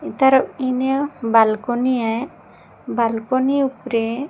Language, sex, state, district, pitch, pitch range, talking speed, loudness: Odia, female, Odisha, Sambalpur, 255 Hz, 230-265 Hz, 85 wpm, -19 LUFS